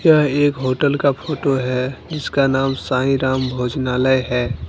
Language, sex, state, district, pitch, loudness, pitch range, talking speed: Hindi, male, Jharkhand, Deoghar, 130 Hz, -18 LUFS, 130-140 Hz, 155 wpm